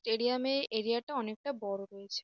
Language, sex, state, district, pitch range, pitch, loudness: Bengali, female, West Bengal, North 24 Parganas, 210-265 Hz, 230 Hz, -34 LUFS